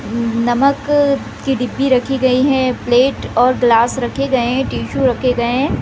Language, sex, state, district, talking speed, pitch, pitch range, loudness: Hindi, female, Uttar Pradesh, Deoria, 175 wpm, 255 Hz, 240-270 Hz, -15 LUFS